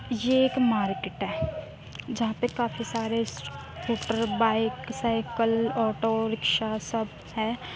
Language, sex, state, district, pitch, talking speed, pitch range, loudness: Hindi, female, Uttar Pradesh, Muzaffarnagar, 225 Hz, 115 wpm, 220-235 Hz, -27 LUFS